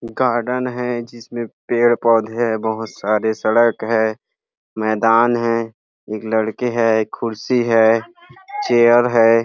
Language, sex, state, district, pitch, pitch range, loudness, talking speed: Hindi, male, Chhattisgarh, Rajnandgaon, 115 Hz, 110-120 Hz, -17 LUFS, 135 wpm